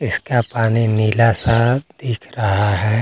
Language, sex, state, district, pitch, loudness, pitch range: Hindi, male, Jharkhand, Garhwa, 115 Hz, -17 LUFS, 110-120 Hz